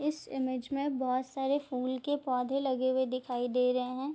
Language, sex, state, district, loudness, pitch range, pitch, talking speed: Hindi, female, Bihar, Bhagalpur, -32 LUFS, 255-275 Hz, 260 Hz, 205 wpm